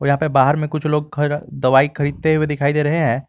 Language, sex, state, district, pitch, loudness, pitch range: Hindi, male, Jharkhand, Garhwa, 145 Hz, -18 LUFS, 140-155 Hz